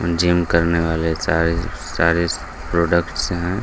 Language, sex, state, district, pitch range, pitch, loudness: Hindi, male, Bihar, Gaya, 80-85 Hz, 85 Hz, -19 LUFS